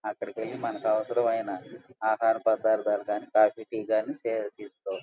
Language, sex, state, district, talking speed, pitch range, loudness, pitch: Telugu, male, Andhra Pradesh, Guntur, 95 wpm, 110-120 Hz, -28 LUFS, 110 Hz